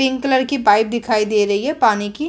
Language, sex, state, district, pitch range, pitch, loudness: Hindi, female, Bihar, Vaishali, 210-275 Hz, 235 Hz, -17 LUFS